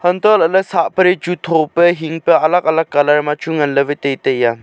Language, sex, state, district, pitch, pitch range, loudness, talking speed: Wancho, male, Arunachal Pradesh, Longding, 160 Hz, 145-175 Hz, -14 LUFS, 270 wpm